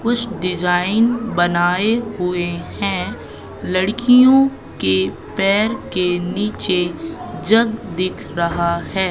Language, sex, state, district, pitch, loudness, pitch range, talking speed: Hindi, female, Madhya Pradesh, Katni, 185 Hz, -18 LUFS, 175-230 Hz, 90 wpm